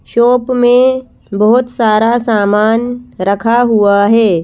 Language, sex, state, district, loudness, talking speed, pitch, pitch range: Hindi, female, Madhya Pradesh, Bhopal, -11 LUFS, 110 wpm, 230 Hz, 210-245 Hz